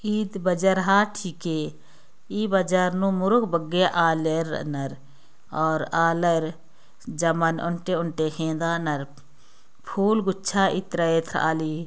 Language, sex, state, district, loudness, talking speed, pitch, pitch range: Sadri, female, Chhattisgarh, Jashpur, -24 LUFS, 110 wpm, 170 Hz, 160-190 Hz